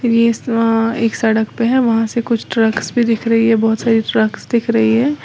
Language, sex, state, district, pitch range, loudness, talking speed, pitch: Hindi, female, Uttar Pradesh, Lalitpur, 225-235 Hz, -15 LUFS, 205 wpm, 230 Hz